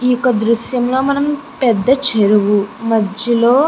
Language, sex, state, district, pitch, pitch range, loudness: Telugu, female, Andhra Pradesh, Chittoor, 240 Hz, 220-260 Hz, -15 LUFS